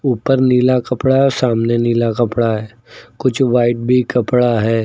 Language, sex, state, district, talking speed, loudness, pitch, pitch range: Hindi, male, Uttar Pradesh, Lucknow, 175 wpm, -15 LUFS, 120 Hz, 115-130 Hz